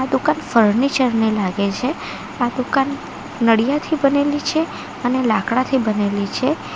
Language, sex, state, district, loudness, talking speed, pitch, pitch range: Gujarati, female, Gujarat, Valsad, -19 LUFS, 125 wpm, 255 Hz, 225-280 Hz